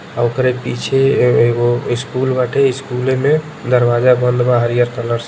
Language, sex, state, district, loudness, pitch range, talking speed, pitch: Bhojpuri, male, Uttar Pradesh, Deoria, -15 LUFS, 120-130 Hz, 195 wpm, 125 Hz